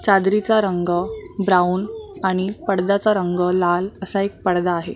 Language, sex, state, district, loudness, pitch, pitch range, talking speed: Marathi, female, Maharashtra, Mumbai Suburban, -20 LUFS, 190 Hz, 180-205 Hz, 135 wpm